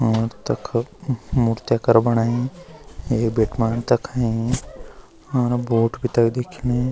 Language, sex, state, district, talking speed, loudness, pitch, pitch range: Garhwali, male, Uttarakhand, Uttarkashi, 110 wpm, -21 LUFS, 120 Hz, 115-125 Hz